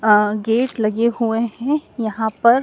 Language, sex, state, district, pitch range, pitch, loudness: Hindi, female, Madhya Pradesh, Dhar, 215-235 Hz, 225 Hz, -19 LUFS